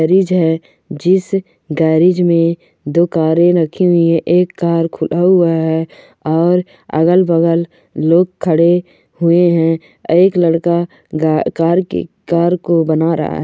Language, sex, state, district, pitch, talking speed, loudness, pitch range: Hindi, female, Goa, North and South Goa, 170 Hz, 145 wpm, -14 LUFS, 165-175 Hz